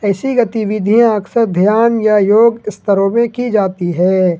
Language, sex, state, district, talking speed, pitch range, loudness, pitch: Hindi, male, Jharkhand, Ranchi, 150 wpm, 200-230 Hz, -13 LUFS, 210 Hz